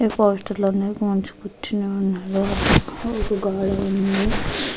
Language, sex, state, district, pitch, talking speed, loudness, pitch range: Telugu, female, Andhra Pradesh, Guntur, 200 Hz, 115 wpm, -21 LUFS, 195-210 Hz